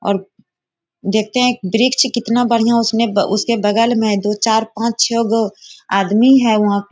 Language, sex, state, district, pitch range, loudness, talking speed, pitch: Hindi, female, Bihar, Bhagalpur, 205-235 Hz, -15 LUFS, 175 wpm, 225 Hz